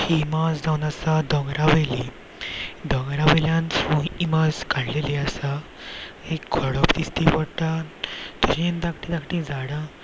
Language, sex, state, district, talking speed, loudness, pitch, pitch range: Konkani, male, Goa, North and South Goa, 115 wpm, -23 LUFS, 155 Hz, 145-160 Hz